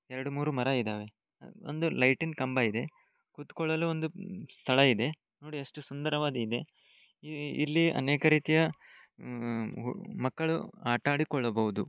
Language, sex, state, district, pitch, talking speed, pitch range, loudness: Kannada, male, Karnataka, Dharwad, 145 Hz, 105 wpm, 125-160 Hz, -31 LUFS